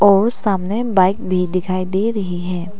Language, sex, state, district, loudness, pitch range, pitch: Hindi, female, Arunachal Pradesh, Papum Pare, -18 LUFS, 185-205 Hz, 190 Hz